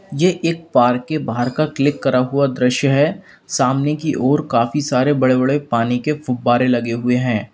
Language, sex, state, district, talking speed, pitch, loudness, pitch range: Hindi, male, Uttar Pradesh, Lalitpur, 190 wpm, 130 Hz, -17 LUFS, 125-150 Hz